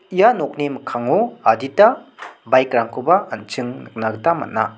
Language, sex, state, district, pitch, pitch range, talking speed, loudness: Garo, male, Meghalaya, South Garo Hills, 130 Hz, 115-145 Hz, 125 wpm, -18 LUFS